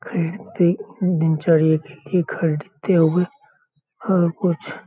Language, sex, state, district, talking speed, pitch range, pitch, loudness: Hindi, male, Bihar, Saharsa, 110 wpm, 160-185 Hz, 170 Hz, -20 LUFS